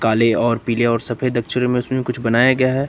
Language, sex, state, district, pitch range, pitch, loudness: Hindi, male, Uttar Pradesh, Lucknow, 115-125 Hz, 120 Hz, -18 LUFS